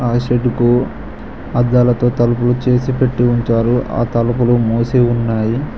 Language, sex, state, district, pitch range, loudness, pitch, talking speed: Telugu, male, Telangana, Mahabubabad, 120-125 Hz, -15 LUFS, 120 Hz, 125 wpm